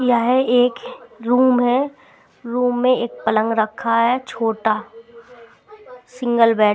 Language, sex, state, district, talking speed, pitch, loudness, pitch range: Hindi, female, Bihar, Patna, 125 wpm, 245 Hz, -18 LUFS, 230-255 Hz